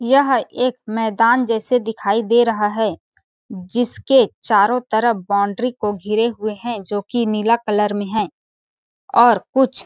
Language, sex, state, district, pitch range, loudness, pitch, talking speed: Hindi, female, Chhattisgarh, Balrampur, 210-240 Hz, -18 LUFS, 225 Hz, 140 wpm